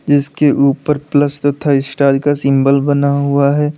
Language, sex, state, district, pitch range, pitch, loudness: Hindi, male, Uttar Pradesh, Lalitpur, 140-145 Hz, 140 Hz, -13 LUFS